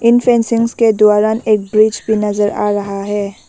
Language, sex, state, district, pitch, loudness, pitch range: Hindi, female, Arunachal Pradesh, Lower Dibang Valley, 215 Hz, -14 LUFS, 205-230 Hz